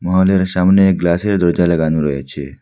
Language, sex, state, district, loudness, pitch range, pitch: Bengali, male, Assam, Hailakandi, -14 LUFS, 80-95 Hz, 90 Hz